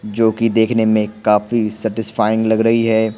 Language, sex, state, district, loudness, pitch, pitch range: Hindi, male, Bihar, Patna, -16 LUFS, 110 Hz, 110-115 Hz